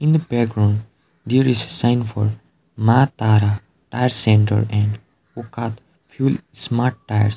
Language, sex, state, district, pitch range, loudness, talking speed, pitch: English, male, Sikkim, Gangtok, 105-125 Hz, -19 LUFS, 130 wpm, 115 Hz